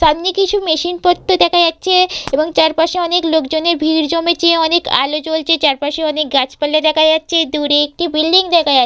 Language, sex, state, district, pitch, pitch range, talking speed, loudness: Bengali, female, West Bengal, Purulia, 320 Hz, 305-345 Hz, 170 wpm, -13 LUFS